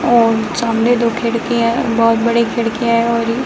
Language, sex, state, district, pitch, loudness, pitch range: Hindi, female, Bihar, Sitamarhi, 235 Hz, -15 LUFS, 230-235 Hz